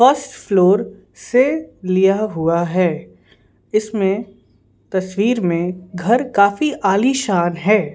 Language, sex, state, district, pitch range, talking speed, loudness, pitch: Hindi, female, Bihar, Patna, 180-230 Hz, 90 wpm, -17 LUFS, 195 Hz